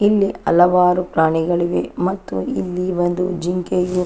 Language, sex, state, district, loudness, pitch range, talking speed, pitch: Kannada, female, Karnataka, Chamarajanagar, -18 LUFS, 175-185 Hz, 120 wpm, 180 Hz